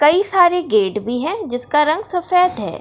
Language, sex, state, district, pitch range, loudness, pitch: Hindi, female, Bihar, Darbhanga, 295-365 Hz, -16 LUFS, 350 Hz